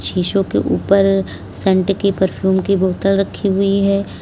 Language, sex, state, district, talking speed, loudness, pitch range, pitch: Hindi, female, Uttar Pradesh, Lalitpur, 155 wpm, -16 LUFS, 190-195 Hz, 195 Hz